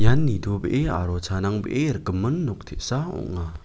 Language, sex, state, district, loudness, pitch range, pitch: Garo, male, Meghalaya, West Garo Hills, -25 LUFS, 90-135 Hz, 100 Hz